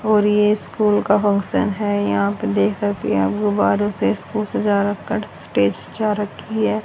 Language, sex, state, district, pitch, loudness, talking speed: Hindi, female, Haryana, Rohtak, 205 Hz, -19 LUFS, 185 wpm